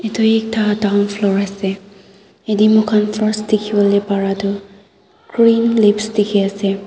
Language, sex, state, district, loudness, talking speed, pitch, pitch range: Nagamese, female, Nagaland, Dimapur, -15 LUFS, 140 wpm, 205 Hz, 200-215 Hz